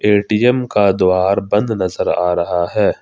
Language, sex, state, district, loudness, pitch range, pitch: Hindi, male, Jharkhand, Ranchi, -15 LUFS, 90-105 Hz, 100 Hz